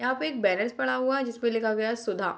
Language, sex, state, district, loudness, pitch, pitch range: Hindi, female, Bihar, Purnia, -27 LUFS, 235 Hz, 220-255 Hz